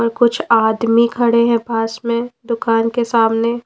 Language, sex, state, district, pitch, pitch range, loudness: Hindi, female, Punjab, Pathankot, 230 Hz, 230-235 Hz, -16 LUFS